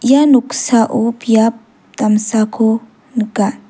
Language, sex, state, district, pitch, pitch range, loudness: Garo, female, Meghalaya, South Garo Hills, 230 Hz, 220-245 Hz, -14 LUFS